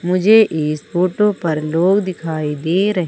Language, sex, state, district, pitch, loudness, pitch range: Hindi, female, Madhya Pradesh, Umaria, 175 Hz, -16 LUFS, 160-195 Hz